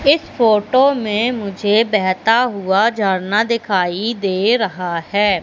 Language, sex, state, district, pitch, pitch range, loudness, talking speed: Hindi, female, Madhya Pradesh, Katni, 210 Hz, 190-230 Hz, -16 LUFS, 120 wpm